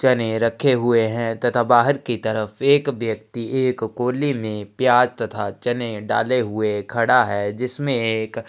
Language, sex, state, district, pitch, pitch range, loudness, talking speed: Hindi, male, Chhattisgarh, Sukma, 120 Hz, 110-125 Hz, -20 LUFS, 160 wpm